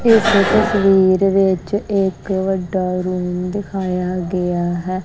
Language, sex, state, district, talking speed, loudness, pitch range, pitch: Punjabi, female, Punjab, Kapurthala, 105 wpm, -17 LUFS, 180-195 Hz, 190 Hz